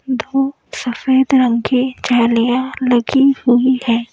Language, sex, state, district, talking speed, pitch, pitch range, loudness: Hindi, female, Madhya Pradesh, Bhopal, 115 wpm, 255 Hz, 240-265 Hz, -15 LUFS